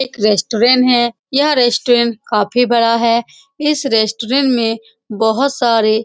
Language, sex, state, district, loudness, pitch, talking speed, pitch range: Hindi, female, Bihar, Saran, -14 LUFS, 235 Hz, 120 wpm, 225-255 Hz